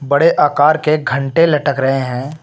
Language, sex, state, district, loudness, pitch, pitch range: Hindi, male, Uttar Pradesh, Lucknow, -14 LUFS, 145 Hz, 135-155 Hz